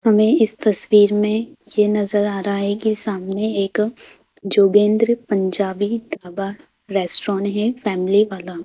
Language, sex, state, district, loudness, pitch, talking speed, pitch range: Hindi, female, Madhya Pradesh, Bhopal, -18 LUFS, 205 Hz, 130 wpm, 195-215 Hz